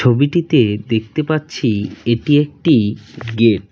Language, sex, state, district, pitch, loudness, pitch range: Bengali, male, West Bengal, Cooch Behar, 120 Hz, -16 LUFS, 110-150 Hz